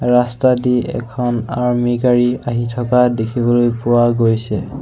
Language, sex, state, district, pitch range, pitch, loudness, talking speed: Assamese, male, Assam, Sonitpur, 120-125 Hz, 120 Hz, -16 LUFS, 110 wpm